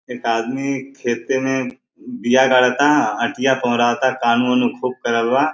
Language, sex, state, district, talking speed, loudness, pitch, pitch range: Awadhi, male, Chhattisgarh, Balrampur, 130 wpm, -18 LUFS, 125 Hz, 120-135 Hz